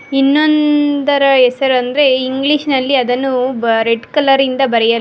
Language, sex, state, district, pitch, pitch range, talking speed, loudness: Kannada, female, Karnataka, Bangalore, 270 Hz, 250-285 Hz, 110 wpm, -13 LUFS